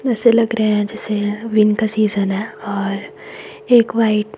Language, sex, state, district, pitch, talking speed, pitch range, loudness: Hindi, female, Himachal Pradesh, Shimla, 215 Hz, 180 wpm, 205-225 Hz, -17 LUFS